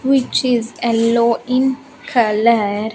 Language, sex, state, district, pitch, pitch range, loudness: English, female, Andhra Pradesh, Sri Satya Sai, 235 Hz, 230-260 Hz, -16 LUFS